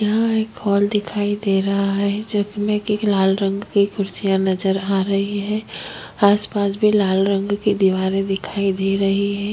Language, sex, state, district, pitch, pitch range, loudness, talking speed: Hindi, female, Chhattisgarh, Kabirdham, 200 Hz, 195-210 Hz, -19 LUFS, 170 wpm